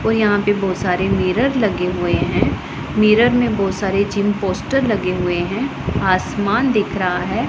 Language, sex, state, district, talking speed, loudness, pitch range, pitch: Hindi, female, Punjab, Pathankot, 175 wpm, -18 LUFS, 190-220 Hz, 205 Hz